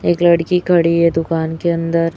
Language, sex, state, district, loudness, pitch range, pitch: Hindi, female, Chhattisgarh, Raipur, -15 LUFS, 165-175 Hz, 170 Hz